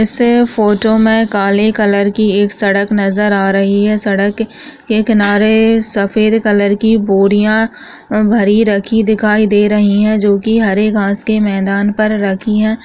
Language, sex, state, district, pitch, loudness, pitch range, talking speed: Hindi, female, Rajasthan, Churu, 210 Hz, -12 LUFS, 200-220 Hz, 155 wpm